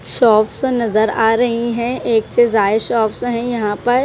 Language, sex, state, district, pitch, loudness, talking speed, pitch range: Hindi, female, Punjab, Kapurthala, 230 Hz, -16 LUFS, 190 wpm, 220-240 Hz